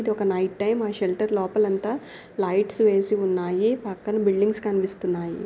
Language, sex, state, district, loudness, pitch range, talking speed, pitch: Telugu, female, Andhra Pradesh, Guntur, -24 LUFS, 190-215 Hz, 155 wpm, 200 Hz